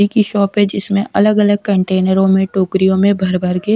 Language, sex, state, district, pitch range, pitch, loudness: Hindi, female, Punjab, Kapurthala, 190-205 Hz, 200 Hz, -14 LUFS